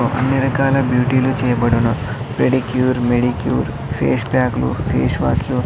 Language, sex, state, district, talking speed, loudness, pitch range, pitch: Telugu, male, Andhra Pradesh, Sri Satya Sai, 125 wpm, -17 LUFS, 120-130 Hz, 125 Hz